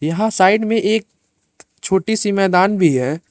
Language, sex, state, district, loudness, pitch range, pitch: Hindi, male, Arunachal Pradesh, Lower Dibang Valley, -16 LUFS, 180-215 Hz, 195 Hz